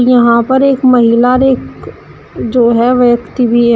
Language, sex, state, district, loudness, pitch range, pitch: Hindi, female, Uttar Pradesh, Shamli, -10 LUFS, 235-255 Hz, 245 Hz